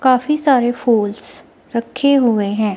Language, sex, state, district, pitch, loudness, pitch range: Hindi, female, Himachal Pradesh, Shimla, 240 Hz, -16 LUFS, 215-265 Hz